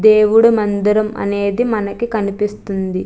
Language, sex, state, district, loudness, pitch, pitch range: Telugu, female, Andhra Pradesh, Chittoor, -16 LUFS, 210 Hz, 200-220 Hz